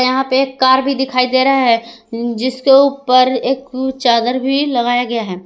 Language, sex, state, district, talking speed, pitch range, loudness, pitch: Hindi, female, Jharkhand, Garhwa, 185 wpm, 240-265 Hz, -14 LUFS, 255 Hz